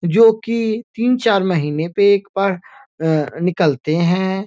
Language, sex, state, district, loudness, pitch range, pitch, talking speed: Hindi, male, Bihar, Muzaffarpur, -17 LUFS, 165-220 Hz, 190 Hz, 135 wpm